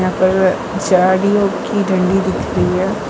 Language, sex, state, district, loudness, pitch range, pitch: Hindi, female, Gujarat, Valsad, -15 LUFS, 185-200 Hz, 190 Hz